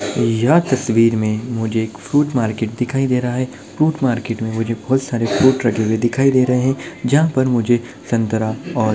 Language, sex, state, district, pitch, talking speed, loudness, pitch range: Hindi, male, Bihar, Madhepura, 120 Hz, 200 wpm, -17 LUFS, 110-130 Hz